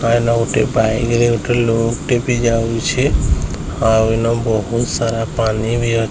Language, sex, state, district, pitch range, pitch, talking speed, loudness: Odia, male, Odisha, Sambalpur, 115-120 Hz, 115 Hz, 145 wpm, -16 LUFS